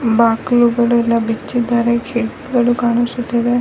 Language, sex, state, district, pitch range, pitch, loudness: Kannada, female, Karnataka, Raichur, 235-240 Hz, 235 Hz, -16 LUFS